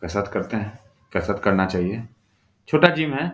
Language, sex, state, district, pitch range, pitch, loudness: Hindi, male, Bihar, Gaya, 100-125 Hz, 105 Hz, -22 LUFS